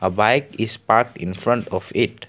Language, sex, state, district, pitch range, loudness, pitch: English, male, Assam, Kamrup Metropolitan, 95-120 Hz, -20 LUFS, 110 Hz